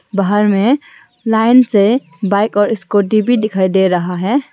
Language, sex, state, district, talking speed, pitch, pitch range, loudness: Hindi, female, Arunachal Pradesh, Longding, 160 wpm, 210 Hz, 200-230 Hz, -13 LUFS